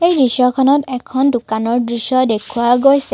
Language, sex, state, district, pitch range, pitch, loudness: Assamese, female, Assam, Kamrup Metropolitan, 235-270 Hz, 250 Hz, -15 LUFS